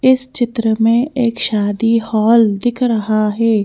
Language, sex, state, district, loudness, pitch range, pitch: Hindi, female, Madhya Pradesh, Bhopal, -15 LUFS, 215-240 Hz, 230 Hz